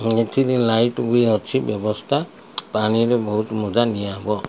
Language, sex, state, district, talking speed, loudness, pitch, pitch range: Odia, male, Odisha, Malkangiri, 105 wpm, -20 LUFS, 110 Hz, 105-120 Hz